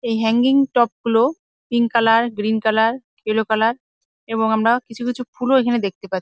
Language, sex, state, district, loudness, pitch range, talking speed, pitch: Bengali, female, West Bengal, Jalpaiguri, -19 LUFS, 220-245 Hz, 175 wpm, 230 Hz